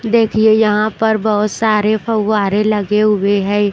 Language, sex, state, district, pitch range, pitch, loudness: Hindi, female, Bihar, Kaimur, 210-220 Hz, 215 Hz, -14 LUFS